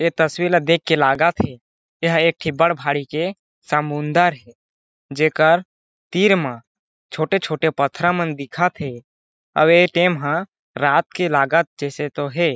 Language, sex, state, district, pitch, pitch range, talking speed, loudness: Chhattisgarhi, male, Chhattisgarh, Jashpur, 160 Hz, 145-170 Hz, 165 wpm, -19 LUFS